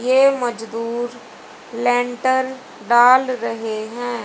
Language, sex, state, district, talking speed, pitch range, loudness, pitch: Hindi, female, Haryana, Charkhi Dadri, 85 wpm, 230-255 Hz, -19 LUFS, 245 Hz